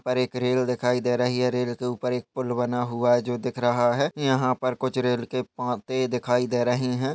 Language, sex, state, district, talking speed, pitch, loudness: Hindi, male, Maharashtra, Pune, 245 wpm, 125 Hz, -25 LUFS